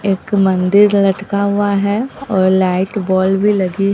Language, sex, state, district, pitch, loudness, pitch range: Hindi, female, Bihar, Katihar, 200 Hz, -14 LUFS, 190-205 Hz